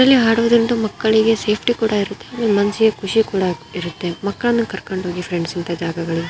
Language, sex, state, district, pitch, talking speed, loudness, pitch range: Kannada, female, Karnataka, Bijapur, 205 Hz, 150 wpm, -18 LUFS, 180-225 Hz